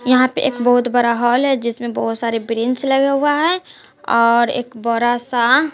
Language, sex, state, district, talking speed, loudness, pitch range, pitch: Hindi, female, Bihar, West Champaran, 190 wpm, -16 LUFS, 235-270 Hz, 245 Hz